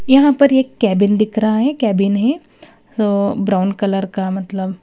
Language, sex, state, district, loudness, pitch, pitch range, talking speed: Hindi, female, Punjab, Kapurthala, -16 LUFS, 210 Hz, 195-260 Hz, 175 wpm